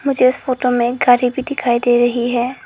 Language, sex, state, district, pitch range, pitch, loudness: Hindi, female, Arunachal Pradesh, Lower Dibang Valley, 240-260 Hz, 250 Hz, -16 LUFS